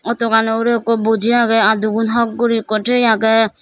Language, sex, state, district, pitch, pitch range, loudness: Chakma, female, Tripura, Dhalai, 225 Hz, 220-235 Hz, -15 LUFS